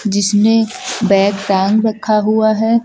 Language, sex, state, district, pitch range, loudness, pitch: Hindi, male, Uttar Pradesh, Lucknow, 200-225 Hz, -14 LUFS, 215 Hz